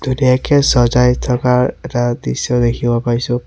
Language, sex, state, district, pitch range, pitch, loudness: Assamese, male, Assam, Sonitpur, 120-130 Hz, 125 Hz, -15 LUFS